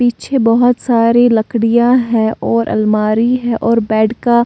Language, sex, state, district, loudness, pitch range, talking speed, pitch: Hindi, female, Bihar, Katihar, -13 LUFS, 220-240 Hz, 150 wpm, 230 Hz